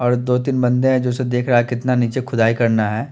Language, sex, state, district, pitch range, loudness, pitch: Hindi, male, Chandigarh, Chandigarh, 120-130 Hz, -18 LUFS, 125 Hz